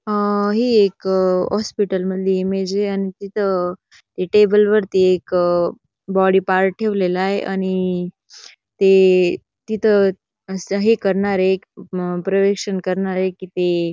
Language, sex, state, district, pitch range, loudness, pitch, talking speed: Marathi, female, Maharashtra, Dhule, 185-200 Hz, -18 LUFS, 190 Hz, 125 wpm